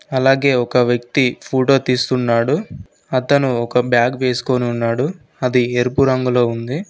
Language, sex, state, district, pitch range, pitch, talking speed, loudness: Telugu, male, Telangana, Mahabubabad, 120-135 Hz, 125 Hz, 120 wpm, -17 LUFS